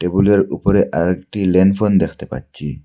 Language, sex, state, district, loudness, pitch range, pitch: Bengali, male, Assam, Hailakandi, -16 LUFS, 90-100 Hz, 95 Hz